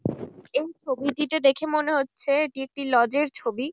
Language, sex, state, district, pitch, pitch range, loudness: Bengali, female, West Bengal, Jhargram, 280 Hz, 270-300 Hz, -25 LUFS